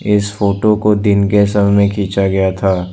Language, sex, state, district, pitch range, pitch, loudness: Hindi, male, Assam, Sonitpur, 95-105 Hz, 100 Hz, -13 LUFS